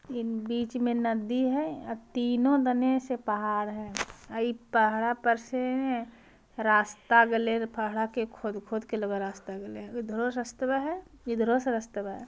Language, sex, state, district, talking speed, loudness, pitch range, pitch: Magahi, female, Bihar, Jamui, 180 wpm, -29 LUFS, 220-250 Hz, 235 Hz